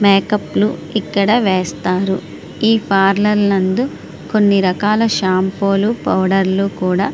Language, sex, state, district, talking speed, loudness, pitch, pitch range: Telugu, female, Andhra Pradesh, Srikakulam, 120 wpm, -15 LUFS, 200 Hz, 190-210 Hz